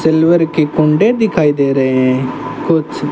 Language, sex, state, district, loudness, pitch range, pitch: Hindi, male, Rajasthan, Bikaner, -13 LUFS, 140-165 Hz, 155 Hz